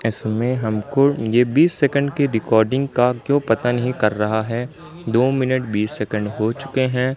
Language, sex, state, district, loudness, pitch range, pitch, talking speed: Hindi, male, Madhya Pradesh, Katni, -19 LUFS, 110-135 Hz, 125 Hz, 175 wpm